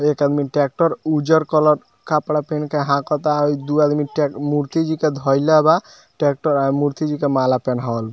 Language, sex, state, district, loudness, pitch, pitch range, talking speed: Bhojpuri, male, Bihar, Muzaffarpur, -18 LUFS, 150 Hz, 140-155 Hz, 200 wpm